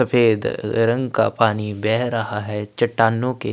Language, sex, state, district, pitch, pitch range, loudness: Hindi, male, Chhattisgarh, Sukma, 115 Hz, 105-120 Hz, -20 LUFS